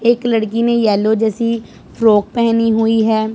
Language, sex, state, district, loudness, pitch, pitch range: Hindi, female, Punjab, Pathankot, -15 LUFS, 225 Hz, 220-230 Hz